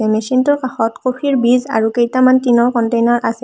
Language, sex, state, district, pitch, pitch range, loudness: Assamese, female, Assam, Hailakandi, 240 Hz, 230-255 Hz, -14 LUFS